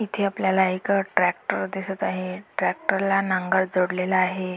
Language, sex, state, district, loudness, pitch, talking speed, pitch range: Marathi, female, Maharashtra, Dhule, -24 LUFS, 190 Hz, 130 wpm, 185-195 Hz